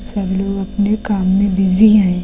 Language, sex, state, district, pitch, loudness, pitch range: Hindi, female, Uttar Pradesh, Lucknow, 195 Hz, -15 LUFS, 190-205 Hz